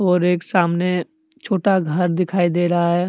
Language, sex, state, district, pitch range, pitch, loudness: Hindi, male, Jharkhand, Deoghar, 175-190 Hz, 180 Hz, -19 LUFS